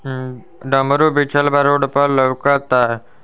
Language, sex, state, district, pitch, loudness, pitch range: Bhojpuri, male, Uttar Pradesh, Ghazipur, 140 Hz, -15 LUFS, 130-145 Hz